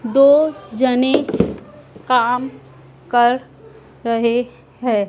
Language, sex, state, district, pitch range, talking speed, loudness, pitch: Hindi, female, Madhya Pradesh, Dhar, 235-260 Hz, 70 wpm, -17 LUFS, 250 Hz